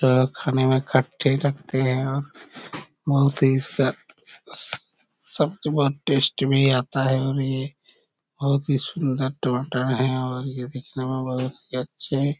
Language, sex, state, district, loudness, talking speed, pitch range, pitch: Hindi, male, Chhattisgarh, Korba, -23 LUFS, 160 wpm, 130-140 Hz, 135 Hz